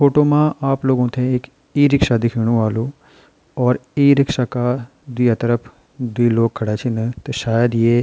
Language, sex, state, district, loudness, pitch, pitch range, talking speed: Garhwali, male, Uttarakhand, Tehri Garhwal, -18 LUFS, 125 Hz, 120-140 Hz, 165 wpm